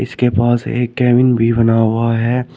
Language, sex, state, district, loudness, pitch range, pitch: Hindi, male, Uttar Pradesh, Shamli, -14 LUFS, 115-125 Hz, 120 Hz